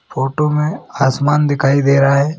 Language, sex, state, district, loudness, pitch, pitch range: Hindi, male, Chhattisgarh, Bilaspur, -15 LUFS, 140 Hz, 140-150 Hz